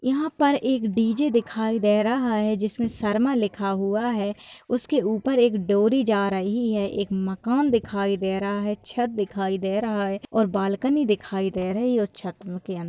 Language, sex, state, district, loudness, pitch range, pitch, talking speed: Hindi, female, Bihar, Bhagalpur, -24 LUFS, 200-240 Hz, 215 Hz, 180 wpm